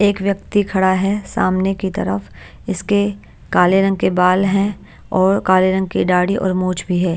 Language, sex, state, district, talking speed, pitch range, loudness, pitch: Hindi, female, Bihar, Patna, 185 wpm, 185-200 Hz, -17 LUFS, 190 Hz